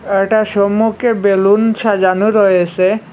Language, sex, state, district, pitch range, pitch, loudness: Bengali, male, Assam, Hailakandi, 195-220 Hz, 205 Hz, -13 LUFS